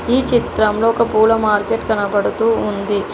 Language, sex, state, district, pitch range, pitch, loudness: Telugu, female, Telangana, Hyderabad, 205-230 Hz, 220 Hz, -16 LUFS